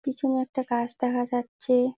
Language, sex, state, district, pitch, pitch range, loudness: Bengali, female, West Bengal, Jalpaiguri, 250 Hz, 245-260 Hz, -27 LUFS